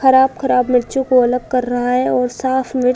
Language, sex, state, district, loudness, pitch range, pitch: Hindi, female, Uttar Pradesh, Budaun, -16 LUFS, 250-260 Hz, 250 Hz